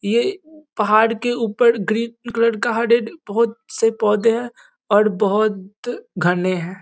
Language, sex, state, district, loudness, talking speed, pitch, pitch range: Hindi, male, Bihar, East Champaran, -19 LUFS, 140 wpm, 230 Hz, 210-235 Hz